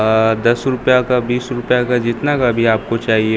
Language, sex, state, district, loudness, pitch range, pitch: Hindi, male, Bihar, Katihar, -15 LUFS, 110-125 Hz, 120 Hz